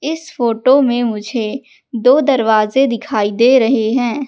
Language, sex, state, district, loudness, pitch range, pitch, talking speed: Hindi, female, Madhya Pradesh, Katni, -14 LUFS, 225-270 Hz, 245 Hz, 140 wpm